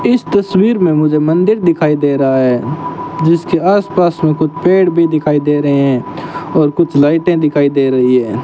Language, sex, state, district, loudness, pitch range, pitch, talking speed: Hindi, male, Rajasthan, Bikaner, -12 LUFS, 145-170 Hz, 160 Hz, 190 wpm